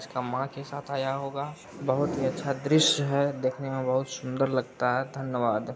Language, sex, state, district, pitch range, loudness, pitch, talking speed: Hindi, male, Bihar, Araria, 130-140 Hz, -28 LUFS, 135 Hz, 190 wpm